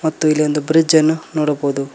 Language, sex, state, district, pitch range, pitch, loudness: Kannada, male, Karnataka, Koppal, 150-160 Hz, 155 Hz, -16 LUFS